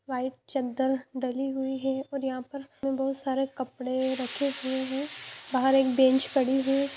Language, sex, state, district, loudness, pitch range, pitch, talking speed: Hindi, female, Jharkhand, Jamtara, -28 LUFS, 260-270 Hz, 265 Hz, 170 wpm